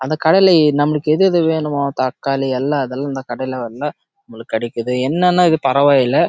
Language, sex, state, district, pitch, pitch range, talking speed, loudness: Tamil, male, Karnataka, Chamarajanagar, 145 Hz, 130-160 Hz, 105 wpm, -16 LUFS